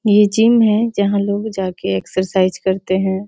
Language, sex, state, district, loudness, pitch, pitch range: Hindi, female, Bihar, Bhagalpur, -16 LUFS, 200 Hz, 185-210 Hz